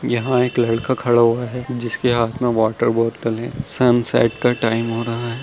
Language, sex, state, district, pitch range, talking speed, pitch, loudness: Hindi, male, Chhattisgarh, Bilaspur, 115-125 Hz, 200 wpm, 120 Hz, -19 LUFS